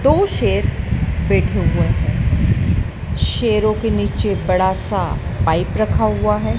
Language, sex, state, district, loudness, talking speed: Hindi, male, Madhya Pradesh, Dhar, -18 LUFS, 125 wpm